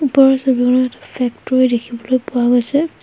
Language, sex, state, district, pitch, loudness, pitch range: Assamese, female, Assam, Hailakandi, 255 Hz, -16 LUFS, 245-265 Hz